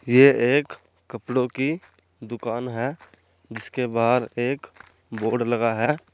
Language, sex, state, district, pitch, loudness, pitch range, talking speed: Hindi, male, Uttar Pradesh, Saharanpur, 120 Hz, -23 LUFS, 115-130 Hz, 115 wpm